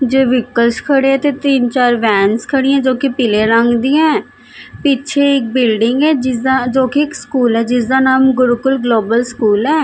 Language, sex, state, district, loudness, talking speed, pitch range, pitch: Punjabi, female, Chandigarh, Chandigarh, -13 LUFS, 185 wpm, 240-275 Hz, 260 Hz